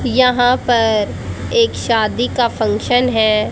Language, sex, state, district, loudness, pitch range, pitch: Hindi, female, Haryana, Charkhi Dadri, -15 LUFS, 220-250 Hz, 240 Hz